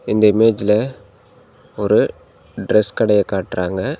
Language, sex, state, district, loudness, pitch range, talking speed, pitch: Tamil, male, Tamil Nadu, Nilgiris, -17 LUFS, 100-105 Hz, 90 wpm, 105 Hz